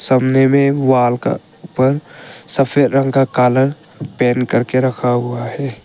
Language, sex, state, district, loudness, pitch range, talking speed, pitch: Hindi, male, Arunachal Pradesh, Longding, -15 LUFS, 125-140 Hz, 145 wpm, 130 Hz